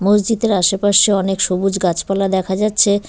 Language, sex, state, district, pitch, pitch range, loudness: Bengali, female, West Bengal, Cooch Behar, 195 Hz, 190-205 Hz, -15 LUFS